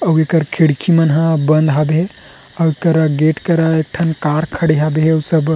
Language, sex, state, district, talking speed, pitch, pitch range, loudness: Chhattisgarhi, male, Chhattisgarh, Rajnandgaon, 205 wpm, 160 Hz, 155-165 Hz, -14 LUFS